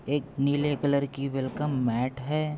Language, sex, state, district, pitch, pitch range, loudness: Hindi, male, Maharashtra, Pune, 140 Hz, 135-145 Hz, -28 LUFS